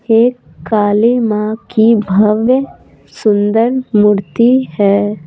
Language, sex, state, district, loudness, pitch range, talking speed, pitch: Hindi, female, Bihar, Patna, -12 LUFS, 205-235 Hz, 90 wpm, 220 Hz